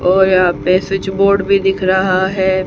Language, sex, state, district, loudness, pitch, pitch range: Hindi, female, Haryana, Charkhi Dadri, -13 LUFS, 190 Hz, 185-195 Hz